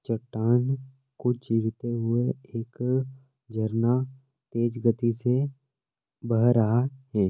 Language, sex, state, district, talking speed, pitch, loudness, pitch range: Hindi, male, Maharashtra, Sindhudurg, 100 wpm, 120 Hz, -27 LUFS, 115-130 Hz